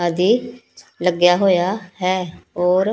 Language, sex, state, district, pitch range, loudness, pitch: Punjabi, female, Punjab, Pathankot, 180-195 Hz, -18 LUFS, 180 Hz